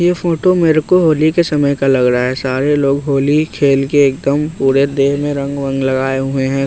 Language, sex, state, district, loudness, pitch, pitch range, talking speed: Hindi, male, Bihar, West Champaran, -14 LUFS, 140 Hz, 135-150 Hz, 225 wpm